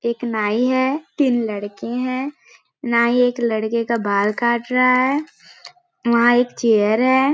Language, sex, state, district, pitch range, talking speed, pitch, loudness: Hindi, female, Chhattisgarh, Balrampur, 230-260 Hz, 155 wpm, 240 Hz, -18 LUFS